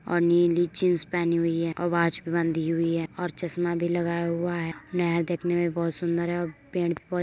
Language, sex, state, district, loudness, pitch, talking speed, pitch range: Hindi, female, Uttar Pradesh, Muzaffarnagar, -26 LUFS, 170 Hz, 240 wpm, 165-175 Hz